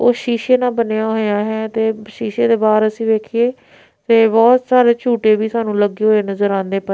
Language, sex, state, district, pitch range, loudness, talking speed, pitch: Punjabi, female, Punjab, Pathankot, 215-235 Hz, -15 LUFS, 205 wpm, 220 Hz